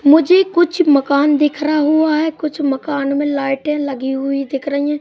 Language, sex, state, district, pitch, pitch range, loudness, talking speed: Hindi, male, Madhya Pradesh, Katni, 295 Hz, 275-305 Hz, -15 LUFS, 190 wpm